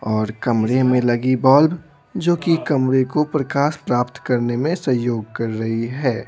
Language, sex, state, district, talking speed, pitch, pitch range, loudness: Hindi, male, Bihar, Patna, 160 wpm, 130 Hz, 120-145 Hz, -19 LUFS